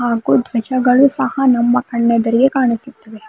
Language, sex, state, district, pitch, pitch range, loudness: Kannada, female, Karnataka, Bidar, 245 Hz, 230-260 Hz, -15 LUFS